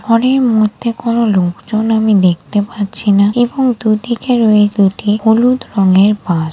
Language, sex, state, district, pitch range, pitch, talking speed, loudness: Bengali, female, West Bengal, Dakshin Dinajpur, 200-235 Hz, 215 Hz, 145 wpm, -12 LUFS